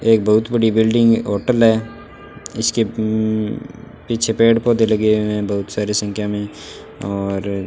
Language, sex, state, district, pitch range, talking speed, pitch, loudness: Hindi, male, Rajasthan, Bikaner, 105-115 Hz, 150 wpm, 110 Hz, -17 LUFS